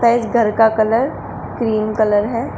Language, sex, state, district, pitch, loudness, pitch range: Hindi, female, Uttar Pradesh, Shamli, 225 Hz, -16 LUFS, 215-235 Hz